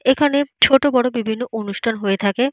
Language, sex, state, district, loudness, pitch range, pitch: Bengali, female, Jharkhand, Jamtara, -18 LUFS, 220-270 Hz, 245 Hz